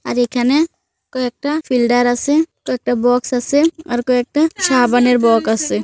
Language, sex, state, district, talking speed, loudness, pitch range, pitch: Bengali, female, West Bengal, Kolkata, 115 wpm, -16 LUFS, 245-290 Hz, 245 Hz